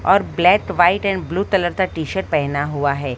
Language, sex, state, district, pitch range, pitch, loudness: Hindi, female, Maharashtra, Mumbai Suburban, 145-190 Hz, 175 Hz, -18 LUFS